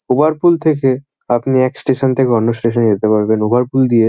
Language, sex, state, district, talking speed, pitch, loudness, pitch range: Bengali, male, West Bengal, North 24 Parganas, 235 wpm, 125 Hz, -14 LUFS, 115-135 Hz